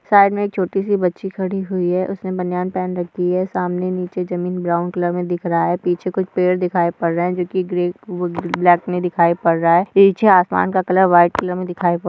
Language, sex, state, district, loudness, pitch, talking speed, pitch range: Hindi, female, Andhra Pradesh, Guntur, -18 LUFS, 180 Hz, 235 wpm, 175-185 Hz